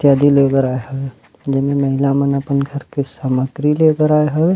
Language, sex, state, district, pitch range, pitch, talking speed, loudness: Chhattisgarhi, male, Chhattisgarh, Rajnandgaon, 135-145 Hz, 140 Hz, 225 wpm, -16 LUFS